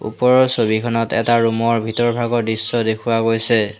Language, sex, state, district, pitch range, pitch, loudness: Assamese, male, Assam, Hailakandi, 110-120 Hz, 115 Hz, -17 LUFS